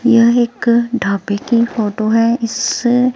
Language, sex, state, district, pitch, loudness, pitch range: Hindi, female, Himachal Pradesh, Shimla, 235 Hz, -15 LUFS, 220-240 Hz